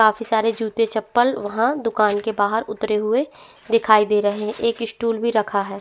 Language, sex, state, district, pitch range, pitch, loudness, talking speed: Hindi, female, Chhattisgarh, Bastar, 210-230 Hz, 220 Hz, -20 LUFS, 195 wpm